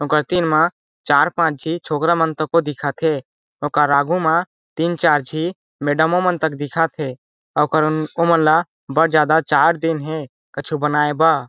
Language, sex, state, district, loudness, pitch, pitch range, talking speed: Chhattisgarhi, male, Chhattisgarh, Jashpur, -18 LUFS, 155 Hz, 150-165 Hz, 165 wpm